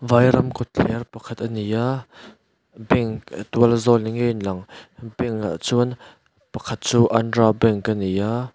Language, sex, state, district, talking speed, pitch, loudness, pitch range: Mizo, male, Mizoram, Aizawl, 150 wpm, 115 Hz, -21 LUFS, 110-120 Hz